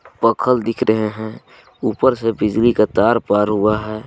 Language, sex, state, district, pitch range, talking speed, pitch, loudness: Hindi, male, Jharkhand, Garhwa, 105-115 Hz, 175 wpm, 110 Hz, -17 LUFS